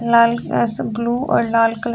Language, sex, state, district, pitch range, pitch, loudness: Maithili, female, Bihar, Sitamarhi, 230-235 Hz, 235 Hz, -18 LUFS